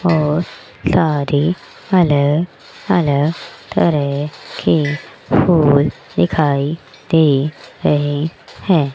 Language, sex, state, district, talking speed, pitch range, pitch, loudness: Hindi, female, Rajasthan, Jaipur, 75 wpm, 145-165 Hz, 150 Hz, -16 LUFS